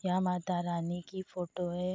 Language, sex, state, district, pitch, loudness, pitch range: Hindi, female, Uttar Pradesh, Jyotiba Phule Nagar, 180 Hz, -35 LUFS, 175-185 Hz